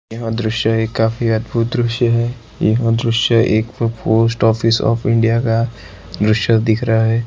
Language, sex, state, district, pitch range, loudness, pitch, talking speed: Hindi, male, Maharashtra, Gondia, 110-115 Hz, -16 LUFS, 115 Hz, 165 wpm